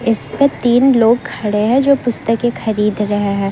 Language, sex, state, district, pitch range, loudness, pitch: Hindi, female, Jharkhand, Ranchi, 210-245 Hz, -15 LUFS, 230 Hz